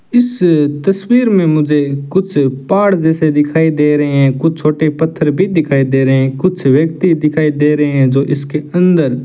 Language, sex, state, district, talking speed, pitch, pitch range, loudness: Hindi, male, Rajasthan, Bikaner, 190 wpm, 150 Hz, 145-175 Hz, -12 LUFS